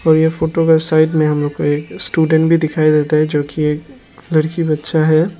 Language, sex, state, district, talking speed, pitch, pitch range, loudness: Hindi, male, Arunachal Pradesh, Lower Dibang Valley, 235 wpm, 155 Hz, 150-160 Hz, -15 LUFS